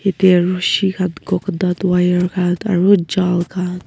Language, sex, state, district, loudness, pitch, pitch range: Nagamese, female, Nagaland, Kohima, -16 LUFS, 180 Hz, 180-190 Hz